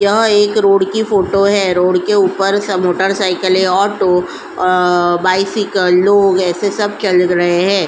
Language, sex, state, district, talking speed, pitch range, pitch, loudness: Hindi, female, Uttar Pradesh, Jyotiba Phule Nagar, 150 wpm, 180-200 Hz, 190 Hz, -13 LUFS